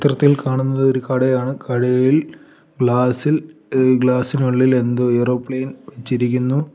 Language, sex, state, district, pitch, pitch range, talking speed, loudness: Malayalam, male, Kerala, Kollam, 130 Hz, 125-135 Hz, 115 wpm, -17 LUFS